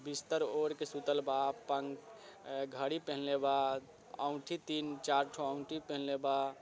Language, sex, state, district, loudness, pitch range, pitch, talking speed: Bajjika, male, Bihar, Vaishali, -37 LUFS, 140-150 Hz, 140 Hz, 125 wpm